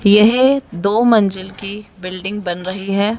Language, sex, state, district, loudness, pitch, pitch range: Hindi, female, Rajasthan, Jaipur, -16 LUFS, 200 Hz, 190-215 Hz